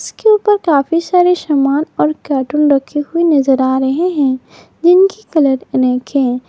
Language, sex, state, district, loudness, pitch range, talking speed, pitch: Hindi, female, Jharkhand, Garhwa, -13 LUFS, 265-340 Hz, 155 wpm, 285 Hz